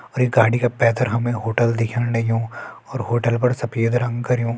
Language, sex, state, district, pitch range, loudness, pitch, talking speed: Hindi, male, Uttarakhand, Tehri Garhwal, 115-120 Hz, -20 LUFS, 120 Hz, 195 wpm